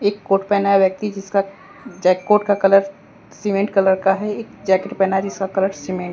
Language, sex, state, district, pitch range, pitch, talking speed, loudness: Hindi, male, Jharkhand, Deoghar, 190-200 Hz, 195 Hz, 205 wpm, -18 LUFS